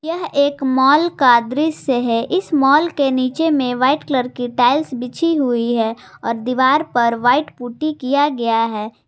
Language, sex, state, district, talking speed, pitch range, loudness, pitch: Hindi, female, Jharkhand, Garhwa, 170 wpm, 245-295 Hz, -17 LUFS, 260 Hz